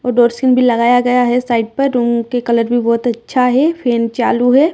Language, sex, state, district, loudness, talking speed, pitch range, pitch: Hindi, female, Odisha, Malkangiri, -14 LUFS, 190 wpm, 235-250 Hz, 245 Hz